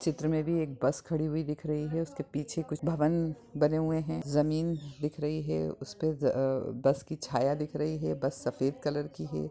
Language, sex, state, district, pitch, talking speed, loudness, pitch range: Hindi, male, Bihar, Jahanabad, 150 Hz, 210 wpm, -32 LUFS, 135-155 Hz